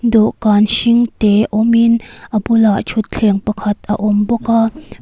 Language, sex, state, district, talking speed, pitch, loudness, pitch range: Mizo, female, Mizoram, Aizawl, 155 wpm, 220 Hz, -14 LUFS, 210-230 Hz